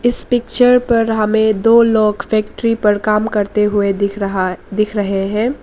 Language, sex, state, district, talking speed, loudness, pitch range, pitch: Hindi, female, Arunachal Pradesh, Lower Dibang Valley, 180 wpm, -14 LUFS, 205-230 Hz, 215 Hz